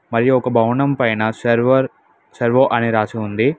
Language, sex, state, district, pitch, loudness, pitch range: Telugu, male, Telangana, Mahabubabad, 120 Hz, -17 LUFS, 115-130 Hz